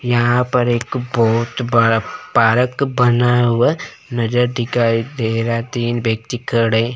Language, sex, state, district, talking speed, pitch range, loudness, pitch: Hindi, male, Chandigarh, Chandigarh, 130 wpm, 115-125 Hz, -17 LUFS, 120 Hz